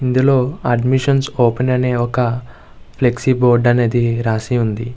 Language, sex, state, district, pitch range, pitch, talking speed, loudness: Telugu, male, Andhra Pradesh, Visakhapatnam, 115-130 Hz, 120 Hz, 120 wpm, -16 LUFS